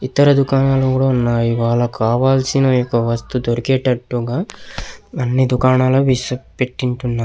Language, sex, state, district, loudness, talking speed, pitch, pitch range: Telugu, male, Andhra Pradesh, Krishna, -16 LUFS, 125 wpm, 130 Hz, 120-135 Hz